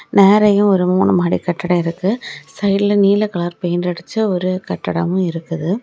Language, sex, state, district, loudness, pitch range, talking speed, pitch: Tamil, female, Tamil Nadu, Kanyakumari, -16 LUFS, 175-200 Hz, 145 wpm, 185 Hz